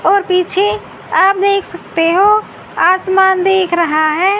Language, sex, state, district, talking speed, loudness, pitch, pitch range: Hindi, female, Haryana, Rohtak, 135 wpm, -13 LUFS, 380 Hz, 350-395 Hz